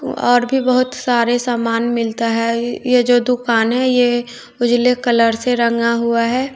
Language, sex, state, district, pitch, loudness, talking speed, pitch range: Hindi, female, Bihar, West Champaran, 240 Hz, -16 LUFS, 165 wpm, 235-250 Hz